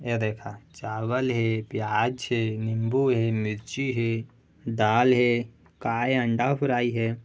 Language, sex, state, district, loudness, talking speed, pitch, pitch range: Chhattisgarhi, male, Chhattisgarh, Raigarh, -26 LUFS, 140 wpm, 115 Hz, 110-125 Hz